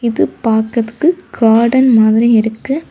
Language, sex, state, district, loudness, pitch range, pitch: Tamil, female, Tamil Nadu, Kanyakumari, -12 LUFS, 220-260 Hz, 230 Hz